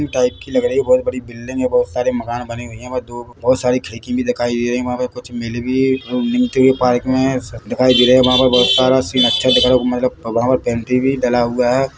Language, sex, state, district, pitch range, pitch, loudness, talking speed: Hindi, male, Chhattisgarh, Bilaspur, 120-130 Hz, 125 Hz, -16 LUFS, 245 wpm